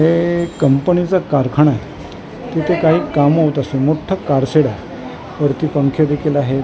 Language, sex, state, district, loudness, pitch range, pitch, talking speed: Marathi, male, Maharashtra, Mumbai Suburban, -15 LUFS, 140-160 Hz, 150 Hz, 165 wpm